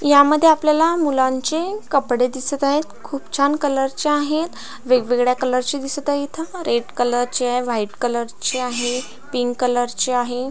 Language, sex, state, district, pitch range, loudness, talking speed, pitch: Marathi, female, Maharashtra, Pune, 245-295 Hz, -19 LUFS, 160 wpm, 265 Hz